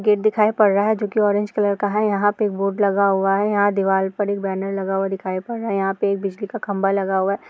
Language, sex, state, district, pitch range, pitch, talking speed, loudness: Hindi, female, Uttar Pradesh, Jyotiba Phule Nagar, 195-210 Hz, 200 Hz, 295 wpm, -20 LUFS